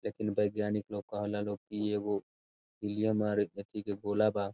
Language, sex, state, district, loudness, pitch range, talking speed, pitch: Bhojpuri, male, Bihar, Saran, -34 LUFS, 100-105 Hz, 170 wpm, 105 Hz